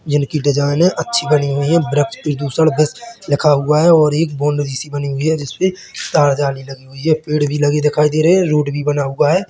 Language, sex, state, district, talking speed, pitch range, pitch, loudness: Hindi, male, Chhattisgarh, Bilaspur, 240 wpm, 145-155 Hz, 150 Hz, -15 LUFS